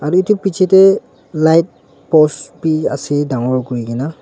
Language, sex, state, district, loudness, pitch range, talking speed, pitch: Nagamese, male, Nagaland, Dimapur, -14 LUFS, 145-185 Hz, 130 wpm, 155 Hz